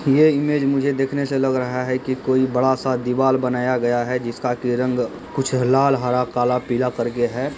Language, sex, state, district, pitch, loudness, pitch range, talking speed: Hindi, male, Bihar, Begusarai, 130 Hz, -20 LUFS, 125-135 Hz, 215 wpm